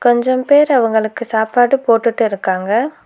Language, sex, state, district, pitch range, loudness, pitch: Tamil, female, Tamil Nadu, Nilgiris, 220-255 Hz, -14 LUFS, 235 Hz